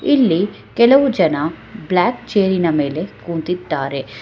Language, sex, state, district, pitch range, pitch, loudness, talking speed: Kannada, female, Karnataka, Bangalore, 160-235 Hz, 180 Hz, -17 LUFS, 115 wpm